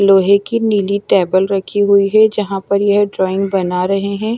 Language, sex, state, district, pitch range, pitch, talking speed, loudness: Hindi, female, Himachal Pradesh, Shimla, 195-205 Hz, 200 Hz, 190 wpm, -14 LUFS